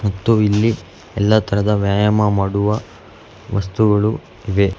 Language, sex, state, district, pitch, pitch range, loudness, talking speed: Kannada, male, Karnataka, Bangalore, 105 Hz, 100-110 Hz, -17 LUFS, 100 wpm